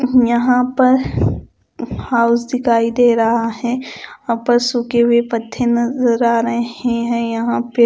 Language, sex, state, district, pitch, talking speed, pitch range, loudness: Hindi, female, Chandigarh, Chandigarh, 235 Hz, 135 wpm, 235-245 Hz, -16 LUFS